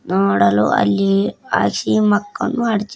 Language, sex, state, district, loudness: Kannada, female, Karnataka, Dharwad, -17 LUFS